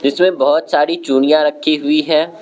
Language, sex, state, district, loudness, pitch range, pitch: Hindi, male, Arunachal Pradesh, Lower Dibang Valley, -14 LUFS, 145-170 Hz, 155 Hz